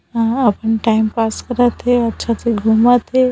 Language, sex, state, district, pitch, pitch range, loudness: Hindi, female, Chhattisgarh, Bilaspur, 230 Hz, 225-245 Hz, -15 LUFS